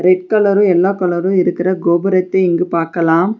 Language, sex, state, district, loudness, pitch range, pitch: Tamil, female, Tamil Nadu, Nilgiris, -14 LUFS, 175-190 Hz, 180 Hz